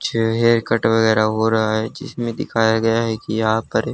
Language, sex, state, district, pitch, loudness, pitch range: Hindi, male, Haryana, Charkhi Dadri, 115 Hz, -18 LUFS, 110-115 Hz